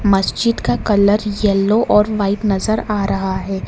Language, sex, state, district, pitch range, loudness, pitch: Hindi, male, Karnataka, Bangalore, 195-215 Hz, -16 LUFS, 205 Hz